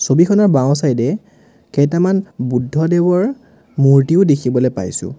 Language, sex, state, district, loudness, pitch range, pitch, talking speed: Assamese, male, Assam, Sonitpur, -15 LUFS, 130-180 Hz, 145 Hz, 115 wpm